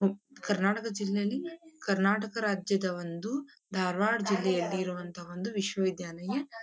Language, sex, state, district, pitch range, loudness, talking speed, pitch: Kannada, female, Karnataka, Dharwad, 185-220 Hz, -31 LUFS, 90 wpm, 200 Hz